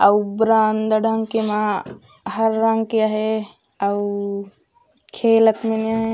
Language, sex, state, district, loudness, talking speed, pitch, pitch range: Chhattisgarhi, female, Chhattisgarh, Raigarh, -19 LUFS, 115 wpm, 220 Hz, 210-225 Hz